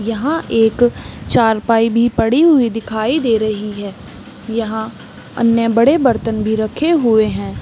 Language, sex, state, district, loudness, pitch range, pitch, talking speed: Hindi, female, Chhattisgarh, Balrampur, -15 LUFS, 220-240 Hz, 225 Hz, 150 wpm